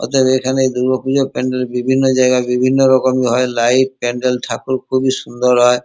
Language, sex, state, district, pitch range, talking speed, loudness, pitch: Bengali, male, West Bengal, Kolkata, 125-130 Hz, 165 wpm, -15 LUFS, 130 Hz